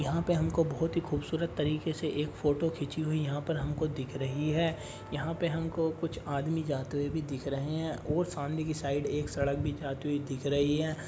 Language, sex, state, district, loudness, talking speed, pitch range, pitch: Hindi, male, Uttar Pradesh, Muzaffarnagar, -32 LUFS, 220 wpm, 145-160 Hz, 150 Hz